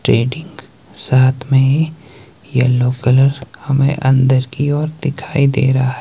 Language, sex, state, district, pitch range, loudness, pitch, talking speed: Hindi, male, Himachal Pradesh, Shimla, 130-145 Hz, -15 LUFS, 135 Hz, 120 wpm